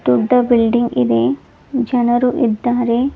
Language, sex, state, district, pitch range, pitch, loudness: Kannada, female, Karnataka, Bangalore, 215-245 Hz, 240 Hz, -15 LUFS